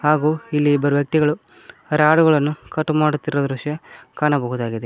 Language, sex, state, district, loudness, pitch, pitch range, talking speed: Kannada, male, Karnataka, Koppal, -19 LUFS, 150 Hz, 145-155 Hz, 125 wpm